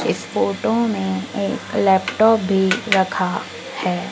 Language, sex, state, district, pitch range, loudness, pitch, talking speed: Hindi, female, Madhya Pradesh, Dhar, 190-225 Hz, -19 LUFS, 195 Hz, 100 wpm